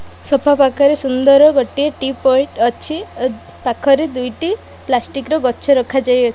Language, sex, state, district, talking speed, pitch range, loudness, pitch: Odia, female, Odisha, Malkangiri, 150 wpm, 255-285 Hz, -15 LUFS, 270 Hz